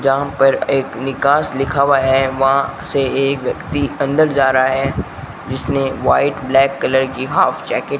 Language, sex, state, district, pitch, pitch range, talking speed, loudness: Hindi, male, Rajasthan, Bikaner, 135 Hz, 130-140 Hz, 170 wpm, -16 LUFS